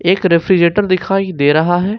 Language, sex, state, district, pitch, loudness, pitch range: Hindi, male, Jharkhand, Ranchi, 185 Hz, -13 LUFS, 170-195 Hz